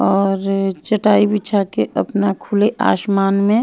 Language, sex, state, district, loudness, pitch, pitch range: Hindi, female, Himachal Pradesh, Shimla, -17 LUFS, 200 Hz, 195-210 Hz